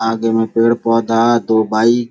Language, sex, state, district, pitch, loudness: Hindi, male, Bihar, Gopalganj, 115 Hz, -14 LUFS